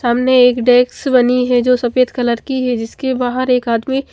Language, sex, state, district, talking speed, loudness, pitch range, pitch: Hindi, female, Chandigarh, Chandigarh, 205 wpm, -14 LUFS, 245-255 Hz, 250 Hz